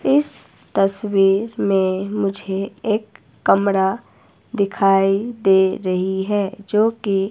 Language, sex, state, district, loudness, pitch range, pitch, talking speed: Hindi, female, Himachal Pradesh, Shimla, -19 LUFS, 195-210 Hz, 195 Hz, 105 wpm